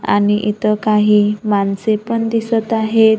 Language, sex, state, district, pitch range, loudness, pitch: Marathi, female, Maharashtra, Gondia, 210-225 Hz, -15 LUFS, 215 Hz